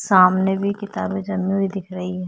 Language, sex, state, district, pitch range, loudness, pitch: Hindi, female, Uttarakhand, Tehri Garhwal, 185-195 Hz, -20 LUFS, 195 Hz